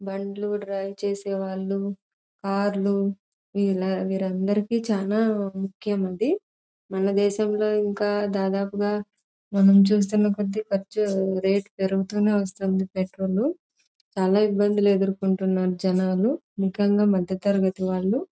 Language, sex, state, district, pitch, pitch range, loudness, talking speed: Telugu, female, Andhra Pradesh, Anantapur, 200 Hz, 190-205 Hz, -24 LUFS, 100 wpm